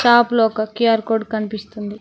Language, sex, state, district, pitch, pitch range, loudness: Telugu, female, Telangana, Mahabubabad, 220 Hz, 215-230 Hz, -18 LUFS